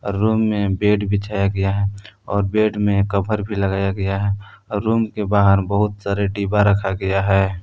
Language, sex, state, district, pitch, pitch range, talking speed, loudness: Hindi, male, Jharkhand, Palamu, 100 Hz, 100-105 Hz, 190 wpm, -19 LUFS